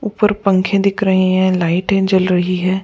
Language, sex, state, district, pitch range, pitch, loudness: Hindi, female, Goa, North and South Goa, 185-195 Hz, 190 Hz, -15 LUFS